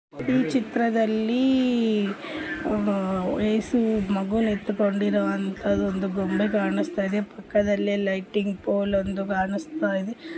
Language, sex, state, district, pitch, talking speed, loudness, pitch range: Kannada, female, Karnataka, Bellary, 205 Hz, 85 wpm, -25 LUFS, 195-220 Hz